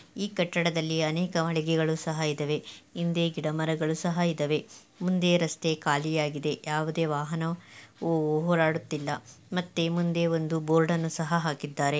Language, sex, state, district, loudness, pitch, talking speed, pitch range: Kannada, female, Karnataka, Belgaum, -28 LUFS, 160 Hz, 120 wpm, 155-170 Hz